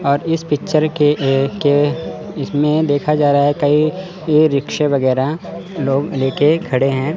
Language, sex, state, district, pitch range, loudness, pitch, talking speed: Hindi, male, Chandigarh, Chandigarh, 140-155 Hz, -16 LUFS, 145 Hz, 150 wpm